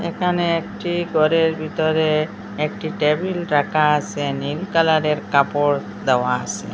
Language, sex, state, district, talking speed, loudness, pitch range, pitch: Bengali, female, Assam, Hailakandi, 115 wpm, -20 LUFS, 145-170 Hz, 155 Hz